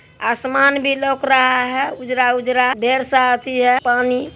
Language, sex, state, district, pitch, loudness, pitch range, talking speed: Hindi, male, Bihar, Araria, 255 Hz, -16 LUFS, 250-270 Hz, 165 wpm